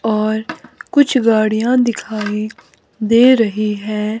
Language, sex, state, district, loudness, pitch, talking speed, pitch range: Hindi, female, Himachal Pradesh, Shimla, -15 LUFS, 220 Hz, 100 wpm, 215-240 Hz